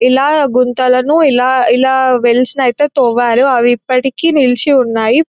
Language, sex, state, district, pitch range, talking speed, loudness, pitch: Telugu, male, Telangana, Nalgonda, 245-275 Hz, 120 wpm, -11 LUFS, 255 Hz